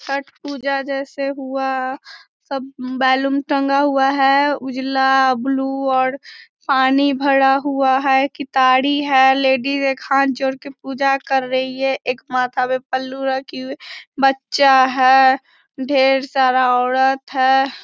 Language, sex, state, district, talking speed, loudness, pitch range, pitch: Hindi, female, Bihar, Begusarai, 130 wpm, -17 LUFS, 260-275 Hz, 270 Hz